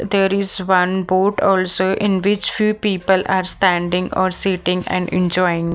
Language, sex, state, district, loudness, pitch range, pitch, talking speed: English, female, Maharashtra, Mumbai Suburban, -18 LUFS, 180-195 Hz, 185 Hz, 155 wpm